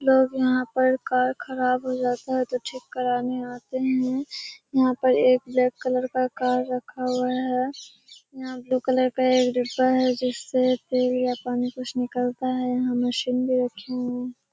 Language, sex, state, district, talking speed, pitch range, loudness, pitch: Hindi, female, Bihar, Kishanganj, 180 wpm, 250-255 Hz, -24 LUFS, 255 Hz